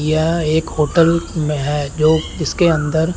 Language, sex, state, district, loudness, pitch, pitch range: Hindi, male, Chandigarh, Chandigarh, -16 LUFS, 155 Hz, 150-165 Hz